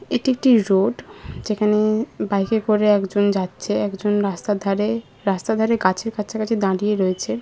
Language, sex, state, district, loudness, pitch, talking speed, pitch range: Bengali, female, West Bengal, Jhargram, -20 LUFS, 210 Hz, 135 wpm, 195-220 Hz